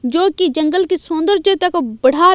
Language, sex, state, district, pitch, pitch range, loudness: Hindi, female, Odisha, Malkangiri, 355 Hz, 310-370 Hz, -15 LUFS